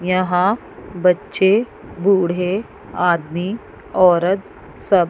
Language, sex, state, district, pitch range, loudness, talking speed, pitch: Hindi, female, Chandigarh, Chandigarh, 175-195 Hz, -18 LUFS, 70 wpm, 185 Hz